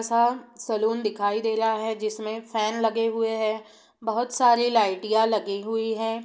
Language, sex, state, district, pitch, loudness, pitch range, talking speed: Hindi, female, Bihar, East Champaran, 225 Hz, -25 LUFS, 215-230 Hz, 165 wpm